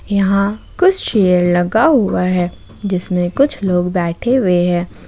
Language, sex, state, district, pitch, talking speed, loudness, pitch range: Hindi, female, Jharkhand, Ranchi, 185 Hz, 140 wpm, -15 LUFS, 180-220 Hz